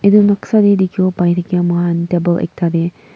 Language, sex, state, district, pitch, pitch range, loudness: Nagamese, female, Nagaland, Kohima, 175 Hz, 175-200 Hz, -14 LUFS